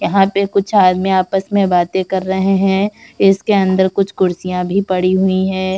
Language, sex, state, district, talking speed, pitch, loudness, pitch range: Hindi, female, Bihar, Samastipur, 185 wpm, 190 Hz, -15 LUFS, 185-195 Hz